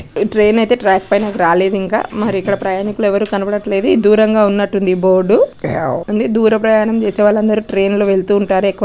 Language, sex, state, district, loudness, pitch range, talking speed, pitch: Telugu, female, Andhra Pradesh, Krishna, -14 LUFS, 195-215 Hz, 185 wpm, 205 Hz